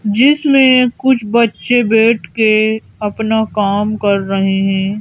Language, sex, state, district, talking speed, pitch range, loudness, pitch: Hindi, female, Madhya Pradesh, Bhopal, 120 wpm, 205-235 Hz, -13 LUFS, 220 Hz